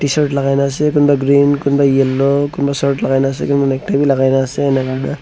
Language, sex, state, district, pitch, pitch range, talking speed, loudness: Nagamese, male, Nagaland, Dimapur, 140 Hz, 135-140 Hz, 230 wpm, -14 LUFS